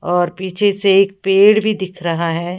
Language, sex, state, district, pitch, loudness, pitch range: Hindi, female, Odisha, Khordha, 190 Hz, -15 LUFS, 175-200 Hz